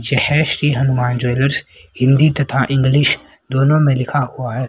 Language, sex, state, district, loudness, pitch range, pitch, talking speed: Hindi, female, Haryana, Rohtak, -15 LUFS, 125-145 Hz, 135 Hz, 155 wpm